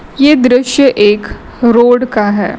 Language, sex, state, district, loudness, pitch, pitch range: Hindi, female, Chhattisgarh, Raipur, -9 LUFS, 245 Hz, 210-260 Hz